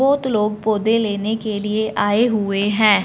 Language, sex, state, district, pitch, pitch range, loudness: Hindi, female, Punjab, Fazilka, 215 Hz, 205-220 Hz, -19 LUFS